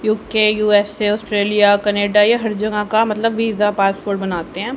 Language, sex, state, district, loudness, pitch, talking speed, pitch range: Hindi, female, Haryana, Charkhi Dadri, -16 LUFS, 210 Hz, 165 wpm, 205-215 Hz